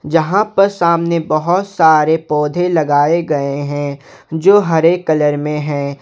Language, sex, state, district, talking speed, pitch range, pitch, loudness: Hindi, male, Jharkhand, Ranchi, 140 wpm, 150-170 Hz, 160 Hz, -14 LUFS